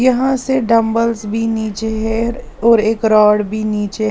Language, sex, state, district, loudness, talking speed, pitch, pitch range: Hindi, female, Punjab, Pathankot, -15 LUFS, 145 wpm, 225 Hz, 215-230 Hz